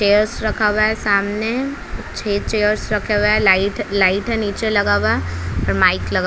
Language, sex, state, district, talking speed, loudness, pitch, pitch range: Hindi, female, Bihar, Patna, 180 wpm, -17 LUFS, 205 Hz, 190-215 Hz